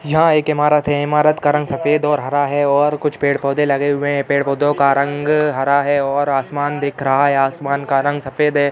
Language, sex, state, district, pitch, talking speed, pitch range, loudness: Hindi, male, Uttar Pradesh, Hamirpur, 145 Hz, 220 wpm, 140-150 Hz, -16 LUFS